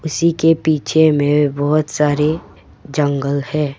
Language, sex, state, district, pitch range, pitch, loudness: Hindi, female, Arunachal Pradesh, Papum Pare, 145-155 Hz, 150 Hz, -16 LUFS